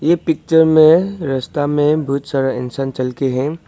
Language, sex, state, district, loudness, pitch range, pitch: Hindi, male, Arunachal Pradesh, Papum Pare, -16 LUFS, 135-160 Hz, 145 Hz